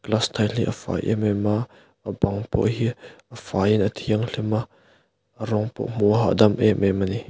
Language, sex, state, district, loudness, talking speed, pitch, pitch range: Mizo, male, Mizoram, Aizawl, -23 LUFS, 240 wpm, 110 Hz, 105-115 Hz